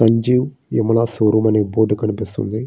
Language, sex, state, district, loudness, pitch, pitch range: Telugu, male, Andhra Pradesh, Srikakulam, -17 LUFS, 110 Hz, 110-115 Hz